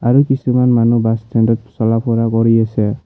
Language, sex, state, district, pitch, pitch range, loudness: Assamese, male, Assam, Kamrup Metropolitan, 115 Hz, 115-125 Hz, -14 LUFS